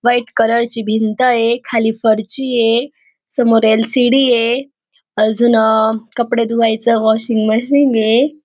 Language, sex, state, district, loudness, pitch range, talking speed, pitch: Marathi, female, Maharashtra, Dhule, -14 LUFS, 220-245 Hz, 105 wpm, 230 Hz